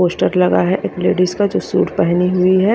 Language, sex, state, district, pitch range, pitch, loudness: Hindi, female, Haryana, Rohtak, 180-190 Hz, 180 Hz, -15 LUFS